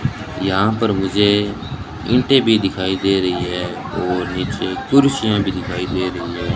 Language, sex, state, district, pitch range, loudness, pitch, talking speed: Hindi, male, Rajasthan, Bikaner, 90-110 Hz, -18 LUFS, 95 Hz, 155 wpm